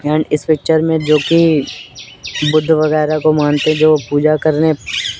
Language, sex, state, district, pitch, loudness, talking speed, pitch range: Hindi, male, Chandigarh, Chandigarh, 155 Hz, -13 LUFS, 150 wpm, 150-155 Hz